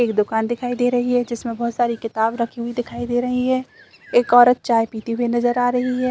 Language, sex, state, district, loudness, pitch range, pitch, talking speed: Hindi, female, Chhattisgarh, Balrampur, -20 LUFS, 235-245 Hz, 240 Hz, 255 wpm